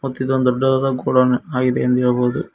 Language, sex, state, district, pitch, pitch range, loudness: Kannada, male, Karnataka, Koppal, 130 Hz, 125-130 Hz, -18 LUFS